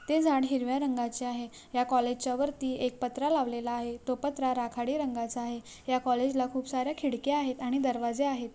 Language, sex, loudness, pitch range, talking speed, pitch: Marathi, female, -31 LUFS, 245-270 Hz, 195 wpm, 255 Hz